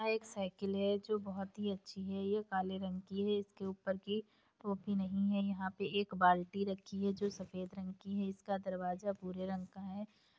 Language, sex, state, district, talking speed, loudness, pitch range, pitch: Hindi, female, Bihar, Jahanabad, 215 wpm, -39 LUFS, 190-200 Hz, 195 Hz